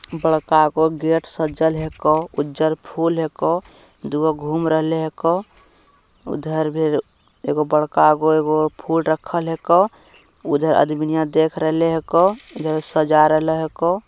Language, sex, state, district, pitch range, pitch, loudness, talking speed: Hindi, male, Bihar, Begusarai, 155-165 Hz, 160 Hz, -19 LUFS, 140 wpm